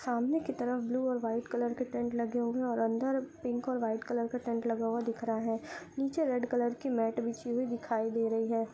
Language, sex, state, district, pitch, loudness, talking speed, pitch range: Hindi, female, Uttar Pradesh, Budaun, 240 Hz, -33 LUFS, 245 wpm, 230-250 Hz